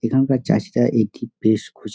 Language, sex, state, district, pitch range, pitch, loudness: Bengali, male, West Bengal, Dakshin Dinajpur, 110-135 Hz, 120 Hz, -20 LUFS